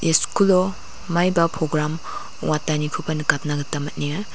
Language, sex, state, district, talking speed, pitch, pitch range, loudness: Garo, female, Meghalaya, West Garo Hills, 110 wpm, 160 Hz, 150-175 Hz, -22 LUFS